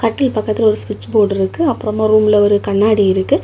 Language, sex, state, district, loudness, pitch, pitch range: Tamil, female, Tamil Nadu, Kanyakumari, -14 LUFS, 215 Hz, 205-225 Hz